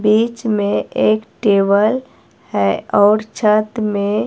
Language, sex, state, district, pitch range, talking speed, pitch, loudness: Hindi, female, Himachal Pradesh, Shimla, 205-220 Hz, 110 wpm, 215 Hz, -16 LUFS